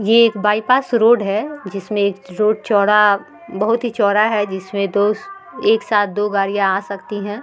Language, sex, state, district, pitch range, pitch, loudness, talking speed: Hindi, female, Bihar, Vaishali, 200-230 Hz, 210 Hz, -17 LUFS, 170 wpm